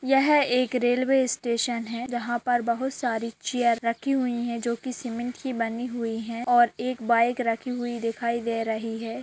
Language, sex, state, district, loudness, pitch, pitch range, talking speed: Hindi, female, Bihar, Purnia, -26 LUFS, 240 Hz, 230-250 Hz, 180 wpm